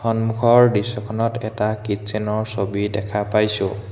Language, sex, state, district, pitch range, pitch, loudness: Assamese, male, Assam, Hailakandi, 105-115 Hz, 105 Hz, -20 LUFS